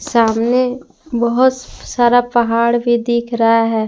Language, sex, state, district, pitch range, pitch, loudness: Hindi, female, Jharkhand, Palamu, 230-245 Hz, 240 Hz, -15 LUFS